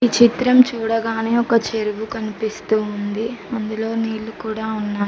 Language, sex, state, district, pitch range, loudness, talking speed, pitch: Telugu, female, Telangana, Mahabubabad, 215-230 Hz, -20 LUFS, 105 wpm, 220 Hz